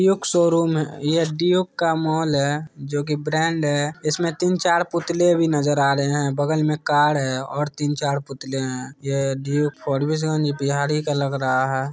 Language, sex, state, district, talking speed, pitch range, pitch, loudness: Hindi, male, Bihar, Araria, 185 wpm, 140-160 Hz, 150 Hz, -21 LUFS